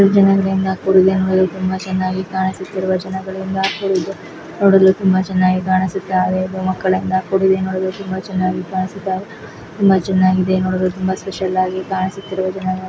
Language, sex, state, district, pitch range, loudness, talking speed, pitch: Kannada, female, Karnataka, Chamarajanagar, 185-190 Hz, -17 LUFS, 125 wpm, 190 Hz